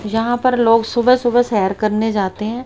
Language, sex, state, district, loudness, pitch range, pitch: Hindi, female, Haryana, Rohtak, -16 LUFS, 210-245 Hz, 225 Hz